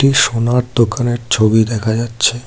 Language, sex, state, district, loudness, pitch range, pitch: Bengali, male, West Bengal, Cooch Behar, -14 LUFS, 110-125 Hz, 120 Hz